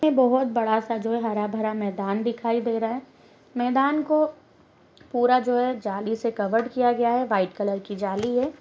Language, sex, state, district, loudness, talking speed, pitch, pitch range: Hindi, female, Uttar Pradesh, Gorakhpur, -24 LUFS, 195 wpm, 235 Hz, 215-250 Hz